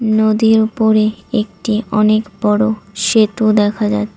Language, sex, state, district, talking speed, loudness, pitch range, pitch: Bengali, female, West Bengal, Cooch Behar, 115 wpm, -14 LUFS, 210-220 Hz, 215 Hz